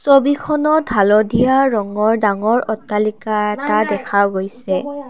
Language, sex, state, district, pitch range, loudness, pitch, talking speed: Assamese, female, Assam, Kamrup Metropolitan, 210-270 Hz, -16 LUFS, 220 Hz, 95 wpm